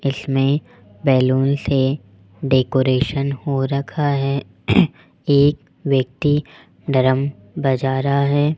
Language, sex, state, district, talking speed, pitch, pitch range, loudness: Hindi, male, Rajasthan, Jaipur, 90 wpm, 135 Hz, 130-140 Hz, -19 LUFS